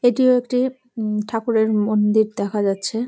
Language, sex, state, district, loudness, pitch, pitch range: Bengali, female, West Bengal, Jalpaiguri, -20 LUFS, 220 Hz, 210-245 Hz